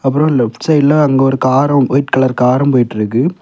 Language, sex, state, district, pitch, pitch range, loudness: Tamil, male, Tamil Nadu, Kanyakumari, 135 Hz, 125-145 Hz, -12 LUFS